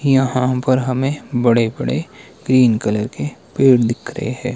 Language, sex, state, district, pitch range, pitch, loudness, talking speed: Hindi, male, Himachal Pradesh, Shimla, 115-130 Hz, 125 Hz, -17 LUFS, 160 wpm